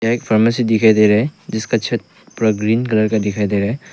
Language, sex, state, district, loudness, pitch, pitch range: Hindi, male, Arunachal Pradesh, Papum Pare, -16 LUFS, 110 Hz, 105-115 Hz